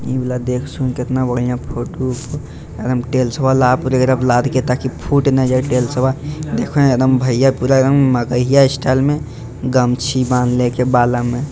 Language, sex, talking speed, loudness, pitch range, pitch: Bhojpuri, male, 165 wpm, -16 LUFS, 125-135 Hz, 130 Hz